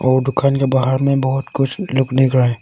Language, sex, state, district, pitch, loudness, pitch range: Hindi, male, Arunachal Pradesh, Longding, 135 Hz, -16 LUFS, 130-135 Hz